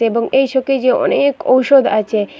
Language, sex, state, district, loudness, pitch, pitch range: Bengali, female, Assam, Hailakandi, -14 LUFS, 260 Hz, 230-270 Hz